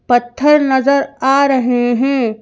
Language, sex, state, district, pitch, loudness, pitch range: Hindi, female, Madhya Pradesh, Bhopal, 265 Hz, -13 LUFS, 245-275 Hz